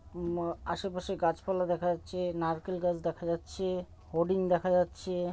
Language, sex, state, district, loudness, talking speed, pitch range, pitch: Bengali, male, West Bengal, North 24 Parganas, -32 LUFS, 135 wpm, 170-180 Hz, 175 Hz